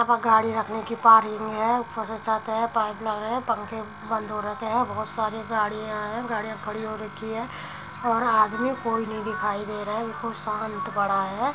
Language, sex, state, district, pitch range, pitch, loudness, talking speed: Hindi, female, Uttar Pradesh, Muzaffarnagar, 215-225 Hz, 220 Hz, -25 LUFS, 200 wpm